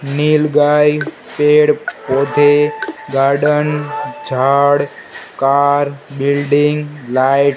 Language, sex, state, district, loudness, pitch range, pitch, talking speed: Hindi, male, Gujarat, Gandhinagar, -14 LUFS, 140-150 Hz, 145 Hz, 80 wpm